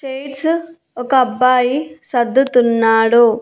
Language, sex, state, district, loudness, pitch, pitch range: Telugu, female, Andhra Pradesh, Annamaya, -15 LUFS, 255 Hz, 235-275 Hz